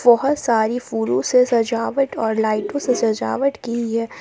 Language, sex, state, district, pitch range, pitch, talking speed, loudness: Hindi, female, Jharkhand, Palamu, 225-250 Hz, 235 Hz, 170 wpm, -19 LUFS